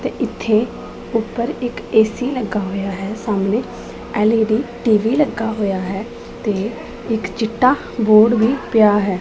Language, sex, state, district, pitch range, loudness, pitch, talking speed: Punjabi, female, Punjab, Pathankot, 210-235 Hz, -18 LUFS, 220 Hz, 135 wpm